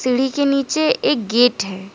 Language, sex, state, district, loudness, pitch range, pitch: Hindi, female, Jharkhand, Deoghar, -17 LUFS, 225-275 Hz, 250 Hz